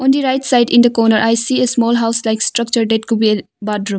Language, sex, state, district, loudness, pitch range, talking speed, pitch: English, female, Arunachal Pradesh, Longding, -14 LUFS, 220-240 Hz, 285 wpm, 230 Hz